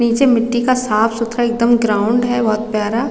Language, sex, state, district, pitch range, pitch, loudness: Hindi, female, Chhattisgarh, Raigarh, 220-240 Hz, 235 Hz, -15 LUFS